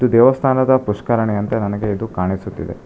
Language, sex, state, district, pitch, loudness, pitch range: Kannada, male, Karnataka, Bangalore, 105 Hz, -17 LUFS, 100-120 Hz